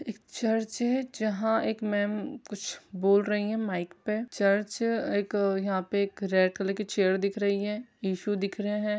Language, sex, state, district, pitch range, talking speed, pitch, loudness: Hindi, female, Bihar, Saran, 200-220 Hz, 195 wpm, 205 Hz, -29 LUFS